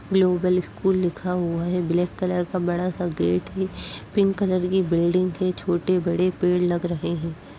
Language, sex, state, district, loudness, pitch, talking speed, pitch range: Hindi, female, Uttar Pradesh, Jyotiba Phule Nagar, -23 LUFS, 180 Hz, 180 wpm, 175-185 Hz